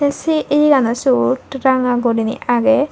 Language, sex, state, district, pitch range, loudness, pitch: Chakma, female, Tripura, Dhalai, 245-285 Hz, -15 LUFS, 265 Hz